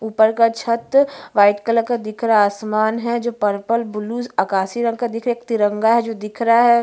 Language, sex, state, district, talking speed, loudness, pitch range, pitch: Hindi, female, Chhattisgarh, Bastar, 130 wpm, -18 LUFS, 215-235 Hz, 230 Hz